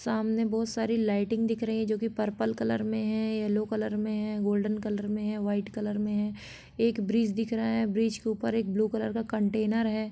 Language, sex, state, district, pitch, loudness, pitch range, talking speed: Hindi, female, Jharkhand, Sahebganj, 215 Hz, -29 LUFS, 210-225 Hz, 230 wpm